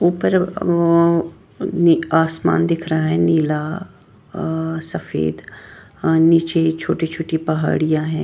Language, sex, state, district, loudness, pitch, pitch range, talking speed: Hindi, female, Bihar, Patna, -18 LUFS, 165 Hz, 160-170 Hz, 110 wpm